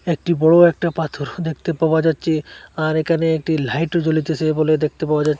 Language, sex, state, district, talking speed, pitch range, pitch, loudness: Bengali, male, Assam, Hailakandi, 175 wpm, 155-165 Hz, 160 Hz, -18 LUFS